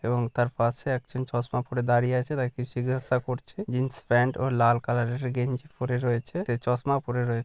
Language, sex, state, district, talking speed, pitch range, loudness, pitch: Bengali, male, West Bengal, Purulia, 200 wpm, 120-130 Hz, -27 LUFS, 125 Hz